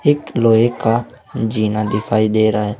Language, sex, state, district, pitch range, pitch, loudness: Hindi, male, Uttar Pradesh, Saharanpur, 110-120 Hz, 110 Hz, -16 LUFS